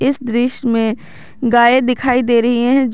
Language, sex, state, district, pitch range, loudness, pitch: Hindi, female, Jharkhand, Garhwa, 235-255 Hz, -14 LUFS, 245 Hz